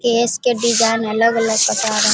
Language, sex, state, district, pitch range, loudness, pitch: Hindi, female, Bihar, Sitamarhi, 220-235 Hz, -16 LUFS, 225 Hz